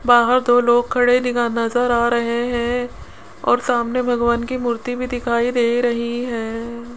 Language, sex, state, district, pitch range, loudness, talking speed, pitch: Hindi, female, Rajasthan, Jaipur, 235-245 Hz, -19 LUFS, 165 wpm, 240 Hz